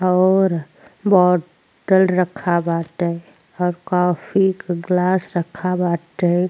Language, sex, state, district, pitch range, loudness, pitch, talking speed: Bhojpuri, female, Uttar Pradesh, Deoria, 170-185 Hz, -19 LUFS, 180 Hz, 90 wpm